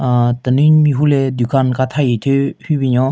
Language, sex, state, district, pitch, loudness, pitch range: Rengma, male, Nagaland, Kohima, 135 Hz, -14 LUFS, 125-140 Hz